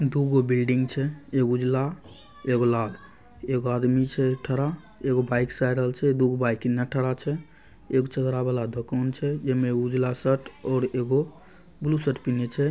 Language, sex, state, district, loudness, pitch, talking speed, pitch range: Angika, male, Bihar, Begusarai, -26 LUFS, 130 Hz, 180 wpm, 125-140 Hz